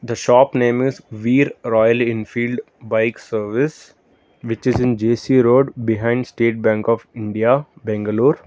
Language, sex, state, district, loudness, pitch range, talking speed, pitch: English, male, Karnataka, Bangalore, -18 LUFS, 110-125 Hz, 140 wpm, 115 Hz